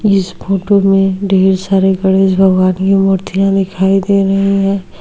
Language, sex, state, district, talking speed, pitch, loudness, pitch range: Hindi, female, Uttar Pradesh, Etah, 155 wpm, 195 Hz, -12 LUFS, 190-195 Hz